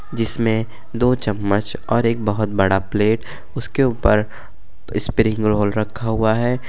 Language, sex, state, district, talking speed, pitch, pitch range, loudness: Bhojpuri, male, Uttar Pradesh, Gorakhpur, 135 wpm, 110 Hz, 105-115 Hz, -19 LUFS